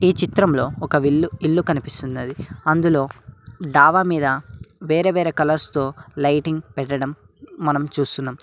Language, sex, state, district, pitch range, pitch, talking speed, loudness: Telugu, male, Telangana, Mahabubabad, 135-160 Hz, 145 Hz, 120 wpm, -20 LUFS